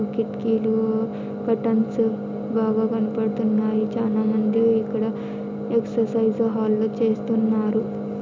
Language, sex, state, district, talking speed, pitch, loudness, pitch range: Telugu, female, Andhra Pradesh, Anantapur, 75 wpm, 225 Hz, -23 LUFS, 220-225 Hz